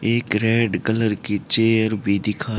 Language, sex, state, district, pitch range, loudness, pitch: Hindi, male, Haryana, Charkhi Dadri, 105-115 Hz, -19 LUFS, 110 Hz